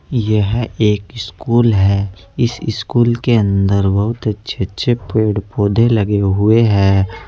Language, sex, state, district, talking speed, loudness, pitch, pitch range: Hindi, male, Uttar Pradesh, Saharanpur, 130 wpm, -15 LUFS, 105 Hz, 100-115 Hz